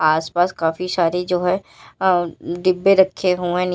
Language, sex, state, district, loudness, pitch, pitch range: Hindi, female, Uttar Pradesh, Lalitpur, -19 LUFS, 180 Hz, 170-185 Hz